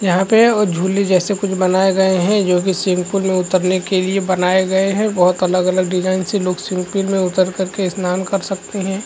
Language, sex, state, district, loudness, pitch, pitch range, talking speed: Hindi, male, Chhattisgarh, Raigarh, -16 LUFS, 185 Hz, 185-195 Hz, 225 wpm